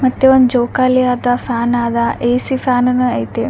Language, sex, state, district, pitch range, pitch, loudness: Kannada, female, Karnataka, Raichur, 240-255 Hz, 250 Hz, -14 LUFS